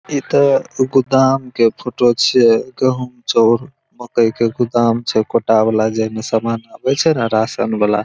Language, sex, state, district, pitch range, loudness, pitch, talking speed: Maithili, male, Bihar, Araria, 110-130 Hz, -15 LUFS, 120 Hz, 165 wpm